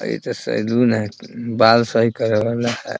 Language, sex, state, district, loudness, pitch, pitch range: Hindi, male, Bihar, Muzaffarpur, -18 LUFS, 115 Hz, 110-120 Hz